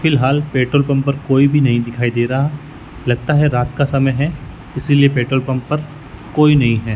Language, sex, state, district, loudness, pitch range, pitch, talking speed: Hindi, male, Rajasthan, Bikaner, -16 LUFS, 125-145 Hz, 135 Hz, 200 wpm